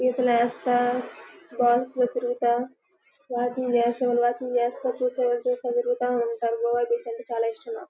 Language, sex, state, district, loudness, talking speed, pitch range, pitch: Telugu, female, Andhra Pradesh, Guntur, -25 LUFS, 105 wpm, 240-275 Hz, 245 Hz